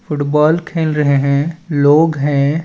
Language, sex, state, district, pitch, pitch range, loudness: Chhattisgarhi, male, Chhattisgarh, Balrampur, 150 Hz, 145-160 Hz, -14 LUFS